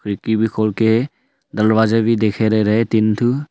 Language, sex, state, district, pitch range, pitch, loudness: Hindi, male, Arunachal Pradesh, Longding, 110-115 Hz, 110 Hz, -16 LUFS